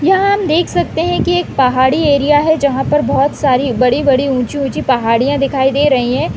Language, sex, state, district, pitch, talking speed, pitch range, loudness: Hindi, female, Uttar Pradesh, Deoria, 275 Hz, 195 wpm, 260-295 Hz, -13 LUFS